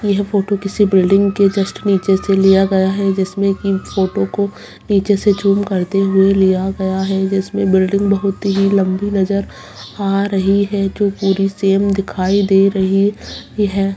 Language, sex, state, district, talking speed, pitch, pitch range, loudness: Hindi, female, Bihar, Purnia, 85 wpm, 195 Hz, 195-200 Hz, -15 LUFS